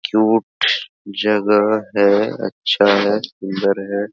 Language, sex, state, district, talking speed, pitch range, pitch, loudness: Hindi, male, Bihar, Araria, 100 wpm, 100-105 Hz, 105 Hz, -17 LUFS